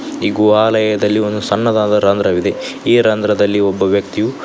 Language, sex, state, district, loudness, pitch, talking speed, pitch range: Kannada, male, Karnataka, Koppal, -14 LUFS, 105 Hz, 135 wpm, 100-110 Hz